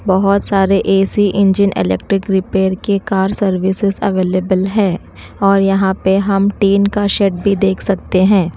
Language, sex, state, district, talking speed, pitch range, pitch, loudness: Hindi, female, Odisha, Nuapada, 155 wpm, 190-200 Hz, 195 Hz, -14 LUFS